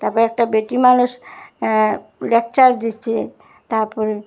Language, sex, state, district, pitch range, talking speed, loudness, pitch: Bengali, female, Assam, Hailakandi, 220-245 Hz, 110 wpm, -17 LUFS, 230 Hz